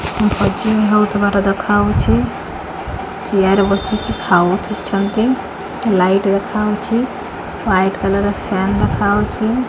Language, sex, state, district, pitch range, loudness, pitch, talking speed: Odia, female, Odisha, Khordha, 195-210 Hz, -16 LUFS, 200 Hz, 100 wpm